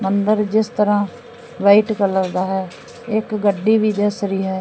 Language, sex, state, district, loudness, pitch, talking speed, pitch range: Punjabi, female, Punjab, Fazilka, -18 LUFS, 205 Hz, 170 wpm, 195-220 Hz